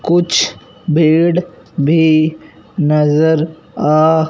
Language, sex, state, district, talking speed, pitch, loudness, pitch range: Hindi, male, Punjab, Fazilka, 70 wpm, 160 Hz, -13 LUFS, 155-170 Hz